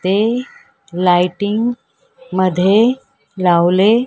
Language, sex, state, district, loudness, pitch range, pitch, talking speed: Marathi, female, Maharashtra, Mumbai Suburban, -15 LUFS, 180-240 Hz, 205 Hz, 75 wpm